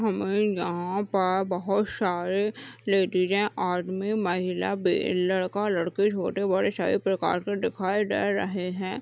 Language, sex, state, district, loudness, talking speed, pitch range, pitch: Hindi, female, Uttar Pradesh, Deoria, -26 LUFS, 135 wpm, 185-205 Hz, 190 Hz